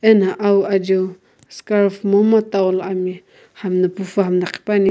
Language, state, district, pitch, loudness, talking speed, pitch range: Sumi, Nagaland, Kohima, 195 Hz, -17 LUFS, 160 wpm, 185-205 Hz